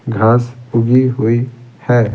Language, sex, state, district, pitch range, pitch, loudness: Hindi, male, Bihar, Patna, 115-125 Hz, 120 Hz, -14 LUFS